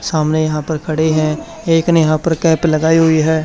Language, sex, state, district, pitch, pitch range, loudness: Hindi, male, Haryana, Charkhi Dadri, 160 Hz, 155-165 Hz, -14 LUFS